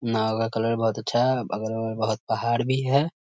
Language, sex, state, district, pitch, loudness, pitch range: Hindi, male, Bihar, Muzaffarpur, 115 Hz, -25 LUFS, 110-125 Hz